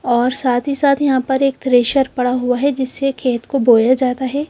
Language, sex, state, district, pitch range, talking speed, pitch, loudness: Hindi, female, Punjab, Fazilka, 250-275 Hz, 225 wpm, 260 Hz, -16 LUFS